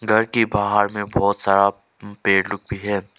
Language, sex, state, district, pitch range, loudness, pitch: Hindi, male, Arunachal Pradesh, Lower Dibang Valley, 100-105 Hz, -20 LUFS, 100 Hz